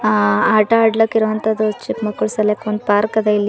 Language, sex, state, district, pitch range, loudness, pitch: Kannada, female, Karnataka, Bidar, 210-220 Hz, -16 LUFS, 215 Hz